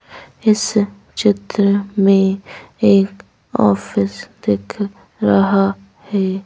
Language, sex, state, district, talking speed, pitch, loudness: Hindi, female, Madhya Pradesh, Bhopal, 55 wpm, 190 Hz, -17 LUFS